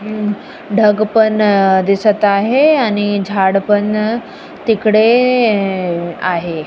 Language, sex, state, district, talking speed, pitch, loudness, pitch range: Marathi, female, Maharashtra, Sindhudurg, 80 wpm, 210 Hz, -13 LUFS, 195-220 Hz